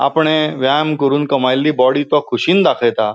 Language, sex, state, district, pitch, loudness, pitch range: Konkani, male, Goa, North and South Goa, 140 Hz, -14 LUFS, 130-155 Hz